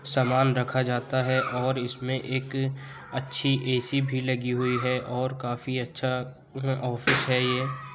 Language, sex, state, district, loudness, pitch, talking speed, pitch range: Hindi, male, Uttar Pradesh, Muzaffarnagar, -27 LUFS, 130 Hz, 145 wpm, 125-135 Hz